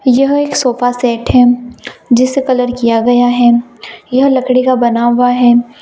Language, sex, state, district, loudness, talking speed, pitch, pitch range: Hindi, female, Bihar, Gaya, -11 LUFS, 165 wpm, 245 Hz, 240-255 Hz